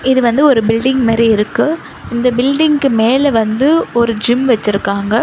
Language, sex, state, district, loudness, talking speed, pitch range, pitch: Tamil, female, Tamil Nadu, Chennai, -13 LUFS, 150 wpm, 225-265 Hz, 235 Hz